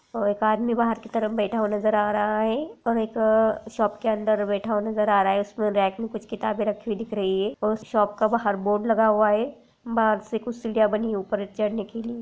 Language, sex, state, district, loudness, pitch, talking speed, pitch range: Hindi, female, Chhattisgarh, Kabirdham, -24 LUFS, 215 Hz, 260 wpm, 210-225 Hz